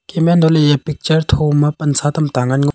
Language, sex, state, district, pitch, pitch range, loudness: Wancho, male, Arunachal Pradesh, Longding, 150 Hz, 145-160 Hz, -14 LUFS